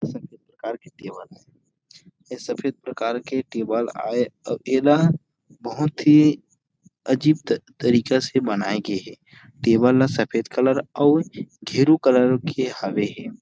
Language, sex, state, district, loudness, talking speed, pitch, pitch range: Chhattisgarhi, male, Chhattisgarh, Rajnandgaon, -21 LUFS, 115 wpm, 130 Hz, 120-150 Hz